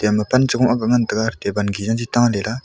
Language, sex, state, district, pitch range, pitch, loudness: Wancho, male, Arunachal Pradesh, Longding, 105-120 Hz, 115 Hz, -18 LUFS